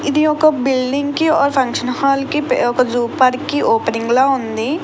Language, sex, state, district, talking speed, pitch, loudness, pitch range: Telugu, female, Andhra Pradesh, Krishna, 175 wpm, 265 Hz, -16 LUFS, 250-290 Hz